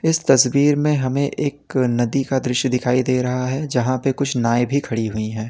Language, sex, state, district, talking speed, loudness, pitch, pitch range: Hindi, male, Uttar Pradesh, Lalitpur, 220 wpm, -19 LUFS, 130 Hz, 125-140 Hz